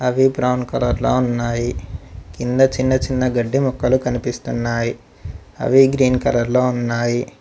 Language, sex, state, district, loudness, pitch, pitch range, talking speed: Telugu, male, Telangana, Mahabubabad, -18 LUFS, 125 Hz, 120-130 Hz, 130 wpm